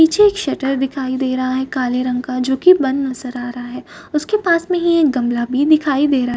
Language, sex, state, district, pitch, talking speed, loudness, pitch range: Hindi, female, Maharashtra, Chandrapur, 265 Hz, 265 wpm, -17 LUFS, 255-310 Hz